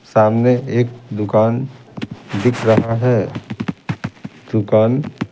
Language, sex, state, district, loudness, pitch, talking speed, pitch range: Hindi, male, Bihar, Patna, -17 LUFS, 115 Hz, 80 wpm, 110-125 Hz